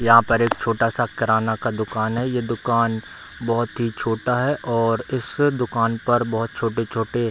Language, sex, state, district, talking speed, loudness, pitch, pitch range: Hindi, male, Bihar, Bhagalpur, 190 wpm, -22 LUFS, 115 Hz, 115-120 Hz